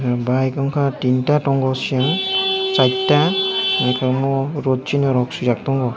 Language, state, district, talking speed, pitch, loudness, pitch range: Kokborok, Tripura, Dhalai, 130 wpm, 135 Hz, -18 LUFS, 130-145 Hz